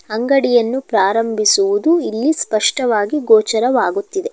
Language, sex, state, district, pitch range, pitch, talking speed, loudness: Kannada, female, Karnataka, Chamarajanagar, 225-320 Hz, 255 Hz, 70 wpm, -15 LUFS